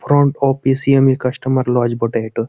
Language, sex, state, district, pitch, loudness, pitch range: Bengali, male, West Bengal, Malda, 130 Hz, -16 LUFS, 120-135 Hz